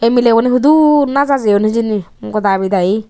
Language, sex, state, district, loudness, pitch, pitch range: Chakma, female, Tripura, Unakoti, -13 LUFS, 230 Hz, 205-275 Hz